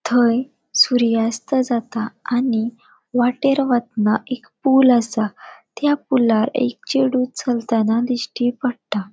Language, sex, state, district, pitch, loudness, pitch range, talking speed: Konkani, female, Goa, North and South Goa, 245 Hz, -19 LUFS, 225-255 Hz, 105 wpm